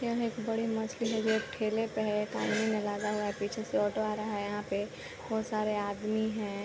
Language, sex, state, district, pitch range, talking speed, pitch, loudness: Hindi, female, Chhattisgarh, Bilaspur, 210-225 Hz, 215 wpm, 215 Hz, -33 LUFS